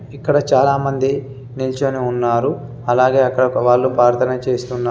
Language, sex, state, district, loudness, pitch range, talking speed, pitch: Telugu, male, Telangana, Adilabad, -17 LUFS, 125-135 Hz, 110 wpm, 130 Hz